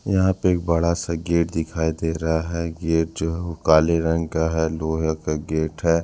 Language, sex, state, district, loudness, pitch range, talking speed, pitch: Hindi, male, Punjab, Kapurthala, -22 LUFS, 80-85 Hz, 200 wpm, 80 Hz